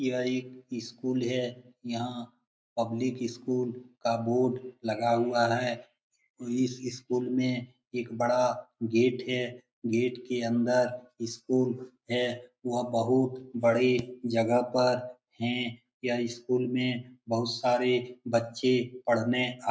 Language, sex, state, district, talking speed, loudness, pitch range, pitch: Hindi, male, Bihar, Lakhisarai, 120 wpm, -30 LUFS, 120-125 Hz, 125 Hz